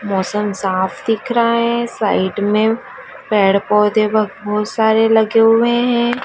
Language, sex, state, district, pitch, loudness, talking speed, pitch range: Hindi, female, Madhya Pradesh, Dhar, 215 Hz, -15 LUFS, 135 wpm, 205-230 Hz